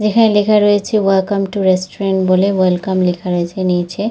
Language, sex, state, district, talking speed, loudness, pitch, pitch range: Bengali, female, West Bengal, Dakshin Dinajpur, 160 wpm, -14 LUFS, 195 Hz, 185-205 Hz